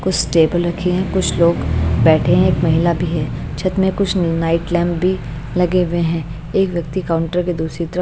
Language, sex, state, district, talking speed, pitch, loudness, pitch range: Hindi, female, Bihar, Patna, 210 wpm, 170 Hz, -17 LUFS, 165-180 Hz